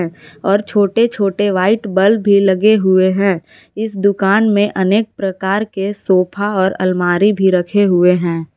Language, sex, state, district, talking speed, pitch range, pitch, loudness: Hindi, female, Jharkhand, Palamu, 155 wpm, 185-205 Hz, 195 Hz, -14 LUFS